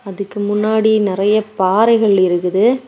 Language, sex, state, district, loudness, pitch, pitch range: Tamil, female, Tamil Nadu, Kanyakumari, -14 LUFS, 205 Hz, 195-220 Hz